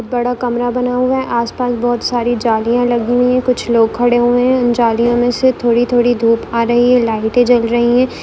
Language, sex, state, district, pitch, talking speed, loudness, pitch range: Hindi, female, Chhattisgarh, Sukma, 240 Hz, 240 wpm, -14 LUFS, 235-245 Hz